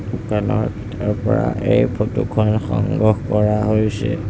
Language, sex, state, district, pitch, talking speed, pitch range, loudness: Assamese, male, Assam, Sonitpur, 105 Hz, 85 wpm, 105-110 Hz, -19 LUFS